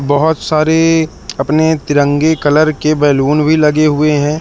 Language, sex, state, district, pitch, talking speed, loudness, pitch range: Hindi, male, Madhya Pradesh, Katni, 150 Hz, 150 wpm, -12 LUFS, 145-155 Hz